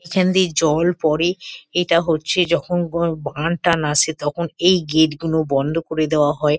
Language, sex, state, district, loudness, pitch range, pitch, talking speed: Bengali, female, West Bengal, Kolkata, -18 LUFS, 155-175 Hz, 165 Hz, 175 wpm